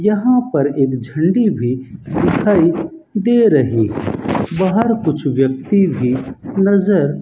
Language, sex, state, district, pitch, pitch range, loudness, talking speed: Hindi, male, Rajasthan, Bikaner, 170 Hz, 135-210 Hz, -16 LUFS, 125 wpm